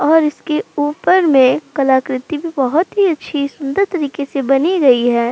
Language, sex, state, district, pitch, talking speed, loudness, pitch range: Hindi, female, Uttar Pradesh, Jalaun, 290 Hz, 170 wpm, -15 LUFS, 270-320 Hz